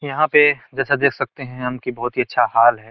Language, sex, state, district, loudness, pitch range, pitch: Hindi, male, Bihar, Gopalganj, -18 LUFS, 120-140 Hz, 130 Hz